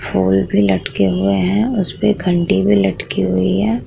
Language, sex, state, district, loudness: Hindi, female, Bihar, Vaishali, -16 LUFS